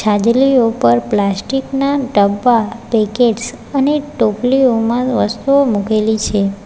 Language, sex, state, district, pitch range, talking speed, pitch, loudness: Gujarati, female, Gujarat, Valsad, 210-260 Hz, 100 wpm, 230 Hz, -14 LUFS